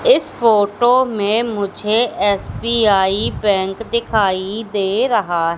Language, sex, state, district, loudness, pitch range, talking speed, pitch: Hindi, female, Madhya Pradesh, Katni, -16 LUFS, 195-230 Hz, 95 wpm, 210 Hz